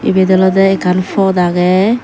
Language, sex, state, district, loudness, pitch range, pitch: Chakma, female, Tripura, Dhalai, -11 LUFS, 180-195 Hz, 190 Hz